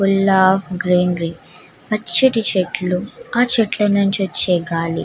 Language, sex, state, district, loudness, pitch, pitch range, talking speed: Telugu, female, Andhra Pradesh, Guntur, -17 LUFS, 190 Hz, 180-215 Hz, 120 wpm